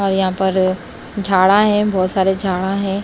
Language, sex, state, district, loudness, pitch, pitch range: Hindi, female, Himachal Pradesh, Shimla, -16 LUFS, 190 Hz, 185-200 Hz